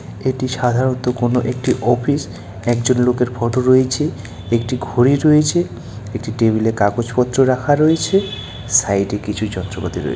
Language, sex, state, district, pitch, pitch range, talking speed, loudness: Bengali, male, West Bengal, Malda, 120 Hz, 110-130 Hz, 130 wpm, -17 LUFS